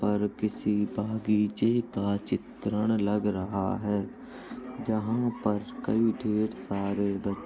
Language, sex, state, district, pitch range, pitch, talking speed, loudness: Hindi, male, Uttar Pradesh, Jalaun, 100-110 Hz, 105 Hz, 120 wpm, -29 LUFS